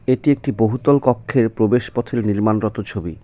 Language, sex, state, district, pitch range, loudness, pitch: Bengali, male, West Bengal, Cooch Behar, 110-130 Hz, -18 LUFS, 115 Hz